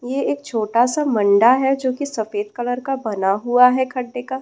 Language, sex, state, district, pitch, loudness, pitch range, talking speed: Hindi, female, Bihar, Gaya, 245 Hz, -19 LUFS, 220-265 Hz, 190 wpm